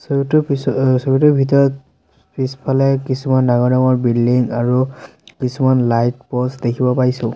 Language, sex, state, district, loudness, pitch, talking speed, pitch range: Assamese, male, Assam, Sonitpur, -16 LUFS, 130 Hz, 130 wpm, 125-135 Hz